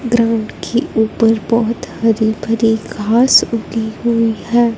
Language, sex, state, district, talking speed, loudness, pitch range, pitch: Hindi, female, Punjab, Fazilka, 125 wpm, -15 LUFS, 220-235 Hz, 225 Hz